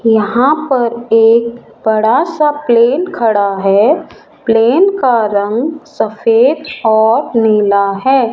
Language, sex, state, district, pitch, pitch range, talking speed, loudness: Hindi, male, Rajasthan, Jaipur, 235 Hz, 220-290 Hz, 110 wpm, -12 LUFS